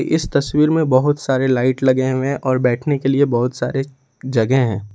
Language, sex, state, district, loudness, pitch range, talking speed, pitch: Hindi, male, Jharkhand, Ranchi, -17 LUFS, 130-140 Hz, 205 wpm, 130 Hz